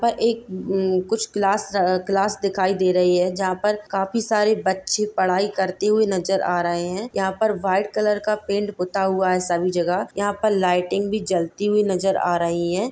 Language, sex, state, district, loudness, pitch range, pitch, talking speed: Hindi, female, Bihar, Gopalganj, -21 LUFS, 185-210 Hz, 195 Hz, 190 wpm